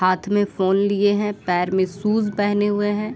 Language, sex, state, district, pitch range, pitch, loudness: Hindi, female, Bihar, Sitamarhi, 190-205 Hz, 205 Hz, -20 LUFS